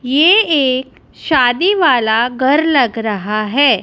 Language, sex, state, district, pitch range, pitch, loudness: Hindi, female, Punjab, Kapurthala, 235-300 Hz, 260 Hz, -13 LUFS